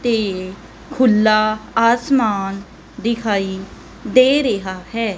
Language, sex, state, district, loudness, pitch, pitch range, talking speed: Punjabi, female, Punjab, Kapurthala, -17 LUFS, 215 Hz, 195-235 Hz, 80 wpm